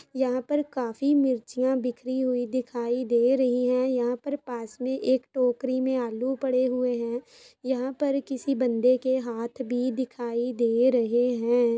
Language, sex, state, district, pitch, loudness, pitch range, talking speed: Hindi, female, Chhattisgarh, Bastar, 255 Hz, -26 LUFS, 245-260 Hz, 165 wpm